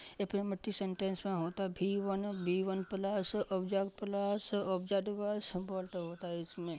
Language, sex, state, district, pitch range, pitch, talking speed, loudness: Hindi, female, Bihar, Madhepura, 185-200 Hz, 195 Hz, 95 wpm, -37 LUFS